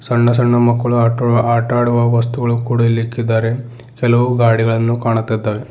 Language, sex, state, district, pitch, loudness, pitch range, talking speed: Kannada, male, Karnataka, Bidar, 120 Hz, -15 LUFS, 115-120 Hz, 135 wpm